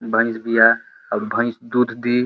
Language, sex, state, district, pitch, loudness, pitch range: Bhojpuri, male, Uttar Pradesh, Deoria, 115 Hz, -19 LUFS, 115-120 Hz